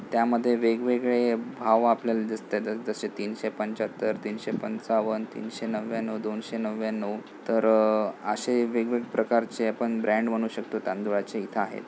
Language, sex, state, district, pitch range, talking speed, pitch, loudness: Marathi, male, Maharashtra, Pune, 110-115 Hz, 125 wpm, 110 Hz, -27 LUFS